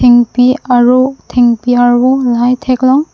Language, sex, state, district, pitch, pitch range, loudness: Karbi, female, Assam, Karbi Anglong, 250 Hz, 245-255 Hz, -10 LUFS